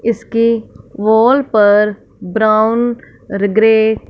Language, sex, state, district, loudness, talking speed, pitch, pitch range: Hindi, female, Punjab, Fazilka, -13 LUFS, 90 wpm, 220 Hz, 210-230 Hz